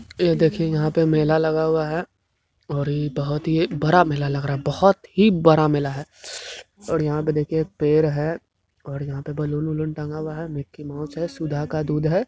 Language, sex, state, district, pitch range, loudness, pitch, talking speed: Hindi, male, Bihar, Vaishali, 145-160 Hz, -22 LUFS, 155 Hz, 215 wpm